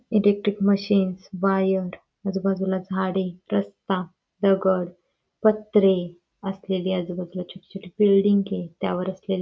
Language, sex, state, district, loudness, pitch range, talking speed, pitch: Marathi, female, Karnataka, Belgaum, -24 LUFS, 185-195 Hz, 85 wpm, 190 Hz